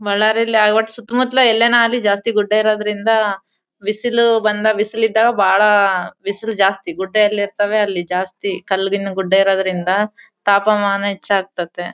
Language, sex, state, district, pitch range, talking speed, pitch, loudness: Kannada, female, Karnataka, Bellary, 195-220 Hz, 135 wpm, 205 Hz, -16 LUFS